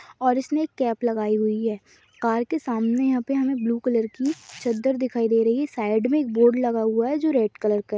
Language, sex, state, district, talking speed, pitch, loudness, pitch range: Hindi, female, Uttarakhand, Tehri Garhwal, 235 wpm, 235 Hz, -23 LUFS, 225-265 Hz